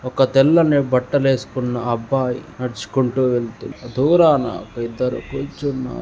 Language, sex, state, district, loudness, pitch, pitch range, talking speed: Telugu, male, Andhra Pradesh, Guntur, -19 LUFS, 130 Hz, 125-140 Hz, 100 wpm